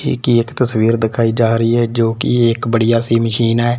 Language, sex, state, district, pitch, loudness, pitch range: Hindi, male, Punjab, Fazilka, 115 Hz, -14 LUFS, 115-120 Hz